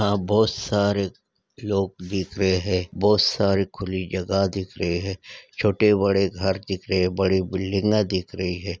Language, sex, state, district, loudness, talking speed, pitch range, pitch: Hindi, female, Maharashtra, Nagpur, -23 LUFS, 165 wpm, 95-100 Hz, 95 Hz